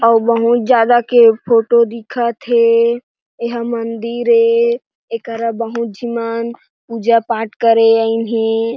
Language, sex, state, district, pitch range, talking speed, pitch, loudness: Chhattisgarhi, female, Chhattisgarh, Jashpur, 230-235 Hz, 115 wpm, 230 Hz, -14 LUFS